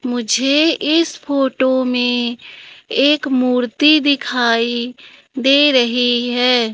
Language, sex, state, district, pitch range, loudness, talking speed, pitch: Hindi, female, Madhya Pradesh, Katni, 245-280 Hz, -15 LUFS, 90 wpm, 250 Hz